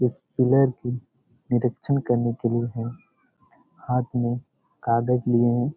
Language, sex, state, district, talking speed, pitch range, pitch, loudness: Hindi, male, Chhattisgarh, Bastar, 135 wpm, 120-125 Hz, 120 Hz, -24 LUFS